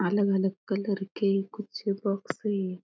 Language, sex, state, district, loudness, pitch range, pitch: Marathi, female, Maharashtra, Aurangabad, -29 LUFS, 190-205 Hz, 195 Hz